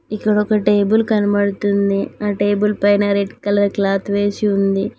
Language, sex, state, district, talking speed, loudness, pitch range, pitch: Telugu, female, Telangana, Mahabubabad, 130 wpm, -17 LUFS, 200-210 Hz, 205 Hz